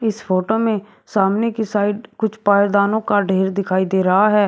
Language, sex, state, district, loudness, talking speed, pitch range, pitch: Hindi, male, Uttar Pradesh, Shamli, -18 LUFS, 185 wpm, 195-220 Hz, 205 Hz